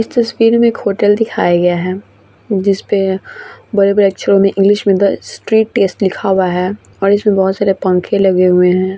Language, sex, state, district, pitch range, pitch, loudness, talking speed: Hindi, female, Bihar, Vaishali, 190-205 Hz, 195 Hz, -13 LUFS, 195 wpm